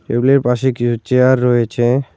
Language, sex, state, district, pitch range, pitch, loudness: Bengali, male, West Bengal, Cooch Behar, 120-130 Hz, 125 Hz, -14 LUFS